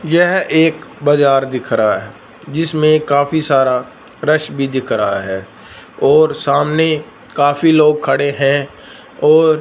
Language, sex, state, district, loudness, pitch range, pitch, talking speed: Hindi, male, Punjab, Fazilka, -14 LUFS, 140-160 Hz, 150 Hz, 125 wpm